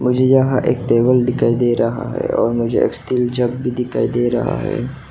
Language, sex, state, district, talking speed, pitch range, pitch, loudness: Hindi, male, Arunachal Pradesh, Papum Pare, 210 wpm, 120-125 Hz, 125 Hz, -17 LUFS